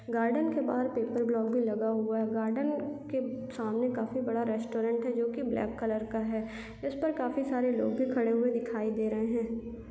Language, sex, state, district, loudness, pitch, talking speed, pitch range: Hindi, female, Chhattisgarh, Raigarh, -31 LUFS, 235 Hz, 200 wpm, 225-255 Hz